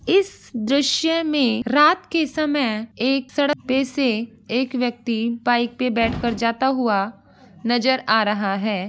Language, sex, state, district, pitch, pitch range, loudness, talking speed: Hindi, female, Andhra Pradesh, Guntur, 245 Hz, 230-275 Hz, -21 LUFS, 155 wpm